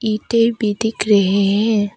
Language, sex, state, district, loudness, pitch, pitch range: Hindi, female, Arunachal Pradesh, Papum Pare, -16 LUFS, 210 Hz, 205-225 Hz